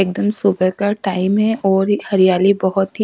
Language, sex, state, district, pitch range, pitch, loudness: Hindi, female, Haryana, Charkhi Dadri, 190-205 Hz, 195 Hz, -16 LUFS